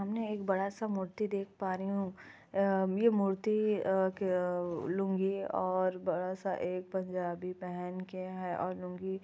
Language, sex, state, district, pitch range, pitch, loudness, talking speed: Hindi, female, Bihar, Kishanganj, 185-195 Hz, 190 Hz, -34 LUFS, 150 wpm